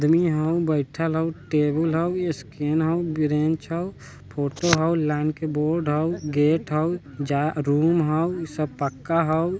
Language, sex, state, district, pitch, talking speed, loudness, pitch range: Bajjika, male, Bihar, Vaishali, 155 Hz, 135 wpm, -23 LUFS, 150-165 Hz